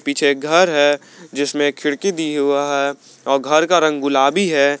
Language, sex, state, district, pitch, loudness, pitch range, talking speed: Hindi, male, Jharkhand, Garhwa, 145 Hz, -17 LUFS, 140-155 Hz, 175 wpm